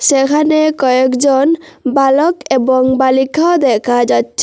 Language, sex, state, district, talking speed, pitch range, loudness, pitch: Bengali, female, Assam, Hailakandi, 95 wpm, 260-310 Hz, -12 LUFS, 270 Hz